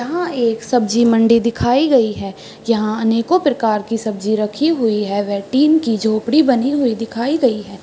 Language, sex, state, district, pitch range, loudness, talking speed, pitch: Hindi, female, Uttar Pradesh, Deoria, 215-260 Hz, -16 LUFS, 185 wpm, 230 Hz